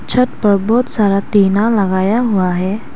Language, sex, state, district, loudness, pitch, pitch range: Hindi, female, Arunachal Pradesh, Lower Dibang Valley, -14 LUFS, 205 Hz, 195-230 Hz